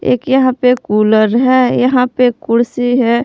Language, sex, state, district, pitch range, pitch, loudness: Hindi, female, Jharkhand, Palamu, 235-255 Hz, 250 Hz, -12 LUFS